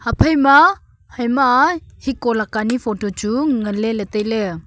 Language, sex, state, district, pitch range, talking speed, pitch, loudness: Wancho, female, Arunachal Pradesh, Longding, 215-270 Hz, 130 wpm, 235 Hz, -17 LUFS